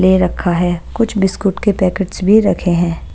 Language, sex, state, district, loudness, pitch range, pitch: Hindi, female, Punjab, Pathankot, -15 LUFS, 175-200 Hz, 185 Hz